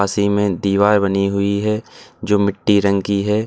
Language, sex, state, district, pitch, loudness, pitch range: Hindi, male, Uttar Pradesh, Lalitpur, 100 Hz, -17 LUFS, 100-105 Hz